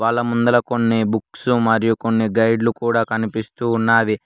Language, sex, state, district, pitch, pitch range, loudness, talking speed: Telugu, male, Telangana, Hyderabad, 115 Hz, 110-120 Hz, -18 LUFS, 140 wpm